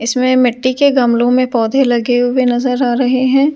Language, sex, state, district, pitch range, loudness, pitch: Hindi, female, Delhi, New Delhi, 245-255 Hz, -13 LUFS, 255 Hz